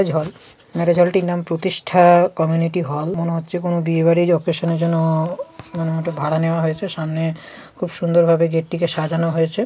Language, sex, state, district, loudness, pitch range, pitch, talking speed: Bengali, male, West Bengal, Kolkata, -18 LUFS, 165-175 Hz, 170 Hz, 180 wpm